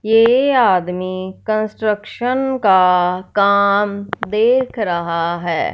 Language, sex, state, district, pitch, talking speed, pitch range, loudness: Hindi, female, Punjab, Fazilka, 200 Hz, 85 wpm, 185-225 Hz, -16 LUFS